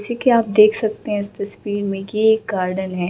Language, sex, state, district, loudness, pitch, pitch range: Hindi, female, Bihar, Gaya, -19 LUFS, 205 Hz, 195-220 Hz